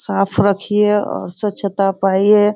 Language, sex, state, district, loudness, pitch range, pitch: Hindi, female, Bihar, Sitamarhi, -16 LUFS, 195-210 Hz, 200 Hz